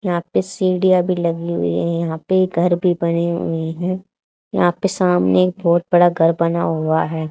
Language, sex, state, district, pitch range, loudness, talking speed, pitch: Hindi, female, Haryana, Charkhi Dadri, 165-180 Hz, -18 LUFS, 195 wpm, 170 Hz